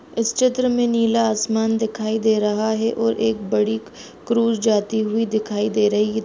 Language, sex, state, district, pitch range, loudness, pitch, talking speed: Hindi, female, Bihar, Bhagalpur, 215-230 Hz, -20 LUFS, 220 Hz, 180 wpm